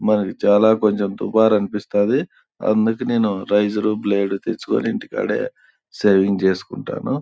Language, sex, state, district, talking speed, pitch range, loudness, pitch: Telugu, male, Andhra Pradesh, Anantapur, 115 wpm, 100-110 Hz, -19 LUFS, 105 Hz